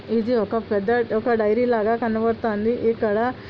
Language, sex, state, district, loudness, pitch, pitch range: Telugu, female, Andhra Pradesh, Anantapur, -22 LUFS, 230 Hz, 220-235 Hz